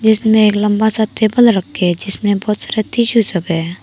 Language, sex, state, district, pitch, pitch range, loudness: Hindi, female, Arunachal Pradesh, Papum Pare, 215 Hz, 195-220 Hz, -14 LUFS